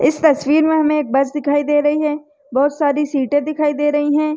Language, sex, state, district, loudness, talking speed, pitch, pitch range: Hindi, female, Chhattisgarh, Rajnandgaon, -16 LUFS, 235 wpm, 295 Hz, 290-300 Hz